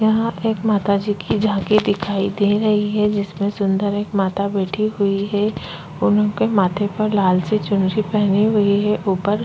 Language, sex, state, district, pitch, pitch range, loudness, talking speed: Hindi, female, Chhattisgarh, Korba, 205 Hz, 195-210 Hz, -19 LUFS, 170 wpm